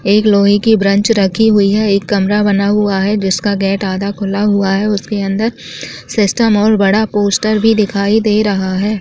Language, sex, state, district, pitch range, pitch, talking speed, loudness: Chhattisgarhi, female, Chhattisgarh, Jashpur, 200-215 Hz, 205 Hz, 195 wpm, -13 LUFS